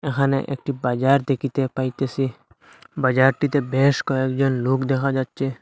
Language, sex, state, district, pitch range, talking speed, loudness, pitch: Bengali, male, Assam, Hailakandi, 130-140 Hz, 115 wpm, -21 LUFS, 135 Hz